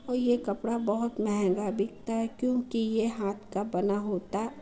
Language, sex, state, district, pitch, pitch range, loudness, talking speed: Hindi, female, Bihar, Muzaffarpur, 215 Hz, 200-235 Hz, -30 LUFS, 180 wpm